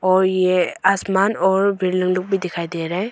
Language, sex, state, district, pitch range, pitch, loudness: Hindi, female, Arunachal Pradesh, Longding, 185-195 Hz, 185 Hz, -19 LUFS